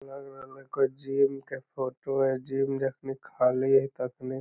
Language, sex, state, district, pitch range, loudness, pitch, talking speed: Magahi, male, Bihar, Lakhisarai, 130-135 Hz, -29 LUFS, 135 Hz, 205 wpm